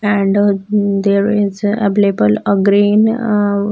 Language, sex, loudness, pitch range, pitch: English, female, -14 LUFS, 200-205 Hz, 205 Hz